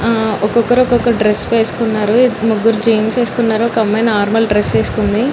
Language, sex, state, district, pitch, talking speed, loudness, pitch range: Telugu, female, Telangana, Nalgonda, 225 Hz, 160 wpm, -13 LUFS, 215-235 Hz